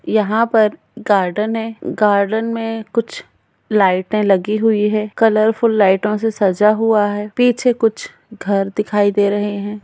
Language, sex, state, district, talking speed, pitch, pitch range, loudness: Hindi, female, Bihar, Bhagalpur, 145 wpm, 215 Hz, 205-225 Hz, -16 LUFS